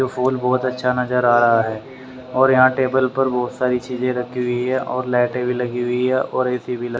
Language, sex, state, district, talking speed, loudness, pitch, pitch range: Hindi, male, Haryana, Rohtak, 230 wpm, -19 LUFS, 125 Hz, 125-130 Hz